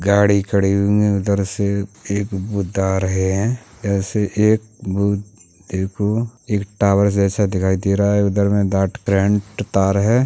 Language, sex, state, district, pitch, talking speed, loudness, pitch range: Hindi, male, Uttar Pradesh, Hamirpur, 100 Hz, 165 wpm, -18 LUFS, 95-105 Hz